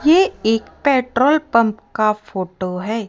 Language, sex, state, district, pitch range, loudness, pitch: Hindi, female, Rajasthan, Jaipur, 210-280 Hz, -18 LUFS, 225 Hz